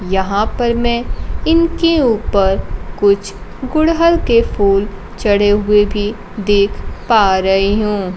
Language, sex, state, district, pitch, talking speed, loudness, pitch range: Hindi, female, Bihar, Kaimur, 205 Hz, 115 wpm, -14 LUFS, 200-235 Hz